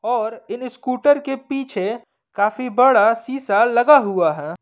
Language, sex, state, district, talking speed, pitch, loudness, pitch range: Hindi, male, Jharkhand, Ranchi, 145 wpm, 240 Hz, -18 LUFS, 205-265 Hz